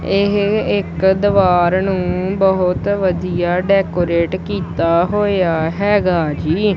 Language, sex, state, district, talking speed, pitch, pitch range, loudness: Punjabi, male, Punjab, Kapurthala, 95 wpm, 185 Hz, 175-200 Hz, -16 LUFS